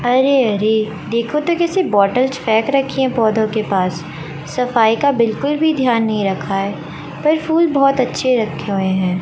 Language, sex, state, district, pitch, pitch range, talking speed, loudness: Hindi, female, Chandigarh, Chandigarh, 225 Hz, 195-270 Hz, 175 wpm, -16 LUFS